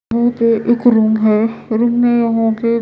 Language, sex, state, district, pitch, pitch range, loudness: Hindi, female, Odisha, Malkangiri, 230 Hz, 225-240 Hz, -14 LUFS